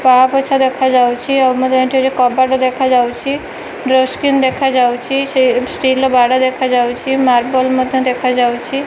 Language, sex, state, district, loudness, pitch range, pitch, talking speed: Odia, female, Odisha, Malkangiri, -13 LUFS, 250-265 Hz, 260 Hz, 130 wpm